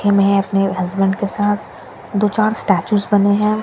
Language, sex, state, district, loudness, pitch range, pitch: Hindi, female, Bihar, Katihar, -17 LUFS, 195-210 Hz, 205 Hz